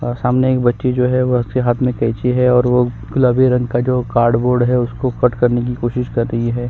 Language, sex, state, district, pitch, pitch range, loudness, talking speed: Hindi, male, Chhattisgarh, Kabirdham, 125 Hz, 120-125 Hz, -16 LUFS, 240 wpm